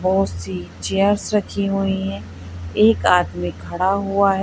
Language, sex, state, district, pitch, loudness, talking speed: Hindi, female, Madhya Pradesh, Bhopal, 185 Hz, -20 LUFS, 150 wpm